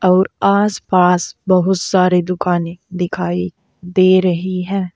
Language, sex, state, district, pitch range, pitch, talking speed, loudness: Hindi, female, Uttar Pradesh, Saharanpur, 180-190 Hz, 185 Hz, 120 wpm, -16 LUFS